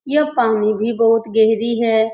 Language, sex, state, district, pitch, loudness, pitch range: Hindi, female, Uttar Pradesh, Etah, 225 Hz, -16 LUFS, 220-235 Hz